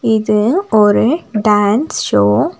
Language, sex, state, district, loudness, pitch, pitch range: Tamil, female, Tamil Nadu, Nilgiris, -13 LUFS, 210 Hz, 205-225 Hz